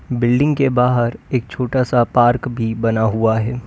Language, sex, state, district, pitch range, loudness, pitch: Hindi, male, Uttar Pradesh, Lalitpur, 115-125 Hz, -17 LUFS, 120 Hz